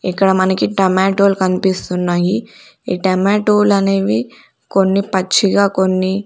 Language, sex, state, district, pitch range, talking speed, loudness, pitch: Telugu, female, Andhra Pradesh, Sri Satya Sai, 185-200 Hz, 85 wpm, -15 LUFS, 190 Hz